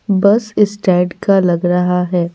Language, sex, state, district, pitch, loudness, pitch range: Hindi, female, Bihar, Patna, 185 Hz, -14 LUFS, 180-200 Hz